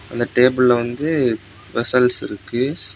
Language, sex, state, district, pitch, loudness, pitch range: Tamil, male, Tamil Nadu, Kanyakumari, 120 Hz, -19 LUFS, 115-125 Hz